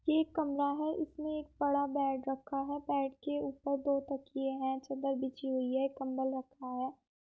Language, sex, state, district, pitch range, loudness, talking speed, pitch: Hindi, female, Uttar Pradesh, Muzaffarnagar, 265-285 Hz, -36 LUFS, 200 wpm, 275 Hz